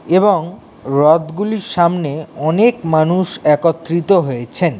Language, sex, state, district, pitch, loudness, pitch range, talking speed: Bengali, male, West Bengal, Kolkata, 165 Hz, -15 LUFS, 155-185 Hz, 85 wpm